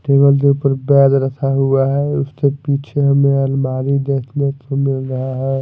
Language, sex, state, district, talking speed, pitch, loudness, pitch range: Hindi, male, Odisha, Malkangiri, 170 wpm, 140 Hz, -16 LUFS, 135-140 Hz